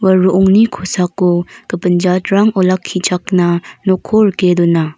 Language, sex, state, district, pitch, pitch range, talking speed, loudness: Garo, female, Meghalaya, North Garo Hills, 185 Hz, 180-190 Hz, 110 wpm, -13 LUFS